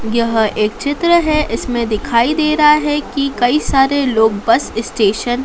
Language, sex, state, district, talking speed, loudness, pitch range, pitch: Hindi, female, Madhya Pradesh, Dhar, 175 wpm, -14 LUFS, 225-295 Hz, 250 Hz